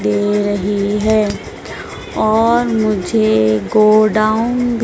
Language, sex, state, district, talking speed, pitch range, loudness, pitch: Hindi, female, Madhya Pradesh, Dhar, 85 wpm, 205-220 Hz, -14 LUFS, 215 Hz